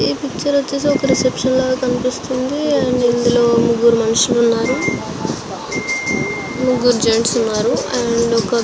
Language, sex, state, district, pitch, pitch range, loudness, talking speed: Telugu, female, Andhra Pradesh, Visakhapatnam, 245 Hz, 235-260 Hz, -16 LUFS, 105 wpm